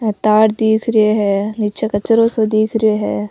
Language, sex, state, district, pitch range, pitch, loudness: Rajasthani, female, Rajasthan, Nagaur, 210-220 Hz, 215 Hz, -15 LUFS